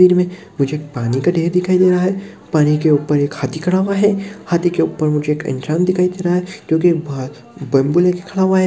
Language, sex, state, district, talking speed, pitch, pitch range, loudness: Hindi, male, Uttar Pradesh, Deoria, 235 wpm, 175 Hz, 150-180 Hz, -17 LUFS